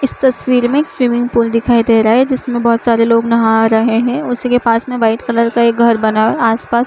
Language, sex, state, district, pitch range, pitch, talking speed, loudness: Hindi, female, Uttar Pradesh, Budaun, 230-245 Hz, 235 Hz, 255 wpm, -13 LUFS